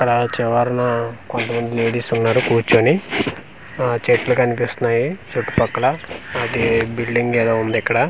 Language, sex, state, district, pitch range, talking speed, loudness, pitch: Telugu, male, Andhra Pradesh, Manyam, 115-120 Hz, 120 wpm, -18 LUFS, 120 Hz